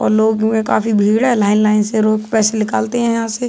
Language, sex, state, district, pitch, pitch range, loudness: Hindi, male, Uttar Pradesh, Budaun, 220 Hz, 215-225 Hz, -15 LUFS